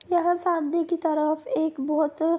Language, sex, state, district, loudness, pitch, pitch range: Hindi, female, Jharkhand, Jamtara, -25 LUFS, 320 Hz, 310-340 Hz